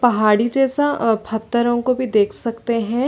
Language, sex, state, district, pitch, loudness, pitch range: Hindi, female, Chhattisgarh, Sarguja, 235 Hz, -18 LUFS, 220-255 Hz